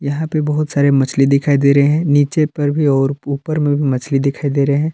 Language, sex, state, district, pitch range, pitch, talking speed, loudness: Hindi, male, Jharkhand, Palamu, 140-150 Hz, 140 Hz, 255 wpm, -15 LUFS